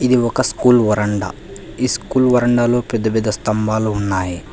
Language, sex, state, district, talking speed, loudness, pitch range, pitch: Telugu, male, Telangana, Hyderabad, 145 wpm, -17 LUFS, 105-125 Hz, 110 Hz